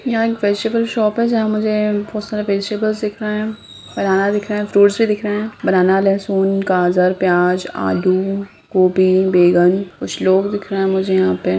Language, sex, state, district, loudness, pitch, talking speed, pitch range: Hindi, female, Bihar, Sitamarhi, -16 LUFS, 200 Hz, 190 wpm, 185-210 Hz